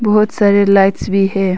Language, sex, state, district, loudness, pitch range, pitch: Hindi, female, Arunachal Pradesh, Longding, -12 LUFS, 195-210 Hz, 200 Hz